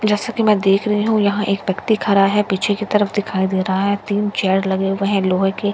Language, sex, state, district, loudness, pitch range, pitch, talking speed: Hindi, female, Bihar, Katihar, -17 LUFS, 195-210 Hz, 200 Hz, 260 wpm